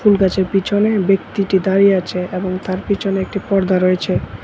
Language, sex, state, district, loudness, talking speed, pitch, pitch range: Bengali, male, Tripura, West Tripura, -17 LUFS, 160 wpm, 190 Hz, 185-200 Hz